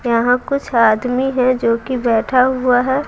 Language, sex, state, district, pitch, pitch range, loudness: Hindi, female, Bihar, Patna, 250 Hz, 235-260 Hz, -16 LUFS